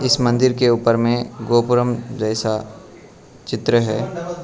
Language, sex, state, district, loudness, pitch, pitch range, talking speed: Hindi, male, Arunachal Pradesh, Lower Dibang Valley, -18 LUFS, 120 Hz, 115-125 Hz, 120 wpm